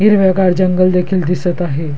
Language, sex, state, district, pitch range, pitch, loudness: Marathi, male, Maharashtra, Dhule, 175-185 Hz, 180 Hz, -13 LUFS